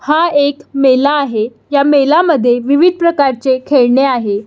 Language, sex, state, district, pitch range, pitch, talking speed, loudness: Marathi, female, Maharashtra, Solapur, 255-295 Hz, 280 Hz, 145 wpm, -12 LUFS